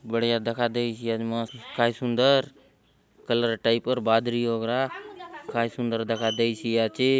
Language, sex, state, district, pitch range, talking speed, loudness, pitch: Halbi, male, Chhattisgarh, Bastar, 115-125 Hz, 140 wpm, -25 LUFS, 115 Hz